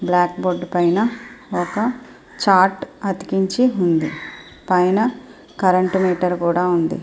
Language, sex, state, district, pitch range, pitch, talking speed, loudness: Telugu, female, Andhra Pradesh, Srikakulam, 175-195 Hz, 185 Hz, 100 wpm, -19 LUFS